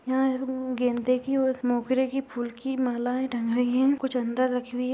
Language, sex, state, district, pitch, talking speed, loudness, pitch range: Hindi, female, Bihar, Madhepura, 255 Hz, 205 wpm, -26 LUFS, 245-260 Hz